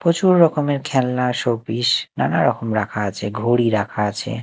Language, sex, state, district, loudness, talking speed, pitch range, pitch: Bengali, male, Odisha, Nuapada, -19 LUFS, 150 wpm, 110-135 Hz, 120 Hz